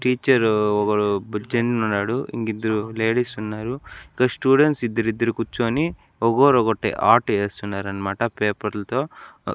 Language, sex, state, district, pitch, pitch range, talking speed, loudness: Telugu, male, Andhra Pradesh, Annamaya, 115 Hz, 105-125 Hz, 90 wpm, -21 LUFS